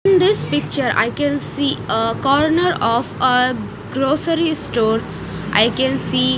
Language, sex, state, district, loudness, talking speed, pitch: English, female, Odisha, Nuapada, -18 LUFS, 150 wpm, 250 Hz